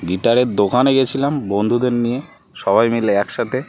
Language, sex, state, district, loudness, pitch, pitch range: Bengali, male, West Bengal, North 24 Parganas, -17 LUFS, 120 Hz, 105-130 Hz